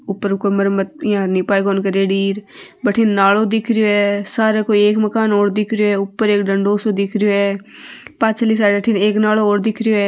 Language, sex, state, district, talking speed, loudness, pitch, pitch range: Marwari, female, Rajasthan, Nagaur, 180 wpm, -16 LUFS, 205 Hz, 200-220 Hz